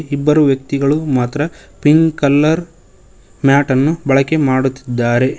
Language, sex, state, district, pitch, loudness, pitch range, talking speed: Kannada, male, Karnataka, Koppal, 140 Hz, -14 LUFS, 130-150 Hz, 100 wpm